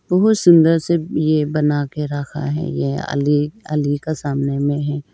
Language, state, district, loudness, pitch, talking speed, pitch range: Hindi, Arunachal Pradesh, Lower Dibang Valley, -18 LUFS, 150 Hz, 175 wpm, 145-155 Hz